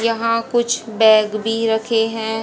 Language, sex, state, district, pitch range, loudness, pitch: Hindi, female, Haryana, Jhajjar, 220-230 Hz, -17 LUFS, 225 Hz